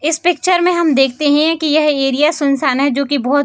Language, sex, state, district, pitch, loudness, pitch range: Hindi, female, Bihar, Samastipur, 295 Hz, -14 LUFS, 280-320 Hz